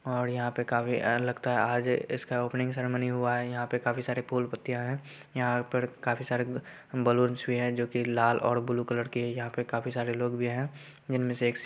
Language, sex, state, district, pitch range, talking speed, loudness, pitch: Hindi, male, Bihar, Saharsa, 120-125 Hz, 230 wpm, -30 LUFS, 120 Hz